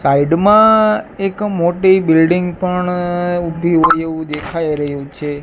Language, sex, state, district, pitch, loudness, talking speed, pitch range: Gujarati, male, Gujarat, Gandhinagar, 170 Hz, -14 LUFS, 130 wpm, 160-185 Hz